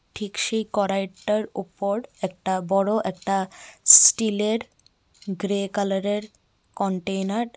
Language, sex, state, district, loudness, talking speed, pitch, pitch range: Bengali, female, Tripura, West Tripura, -22 LUFS, 95 wpm, 200 Hz, 195-210 Hz